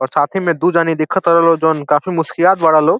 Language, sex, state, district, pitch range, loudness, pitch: Bhojpuri, male, Uttar Pradesh, Deoria, 155-170 Hz, -14 LUFS, 165 Hz